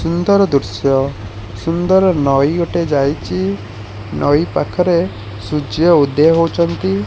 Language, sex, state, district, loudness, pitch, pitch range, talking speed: Odia, male, Odisha, Khordha, -15 LUFS, 140 Hz, 105-170 Hz, 95 wpm